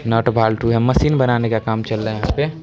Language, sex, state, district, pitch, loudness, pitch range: Hindi, male, Bihar, Darbhanga, 115 Hz, -18 LUFS, 110-125 Hz